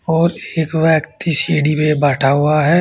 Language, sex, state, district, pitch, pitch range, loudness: Hindi, male, Uttar Pradesh, Saharanpur, 155 Hz, 150-165 Hz, -15 LUFS